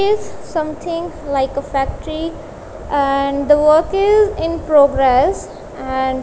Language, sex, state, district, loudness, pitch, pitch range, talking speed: English, female, Punjab, Kapurthala, -16 LUFS, 305 Hz, 275-330 Hz, 125 wpm